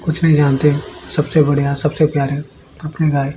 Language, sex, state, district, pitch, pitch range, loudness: Hindi, male, Odisha, Malkangiri, 150 Hz, 140-155 Hz, -16 LUFS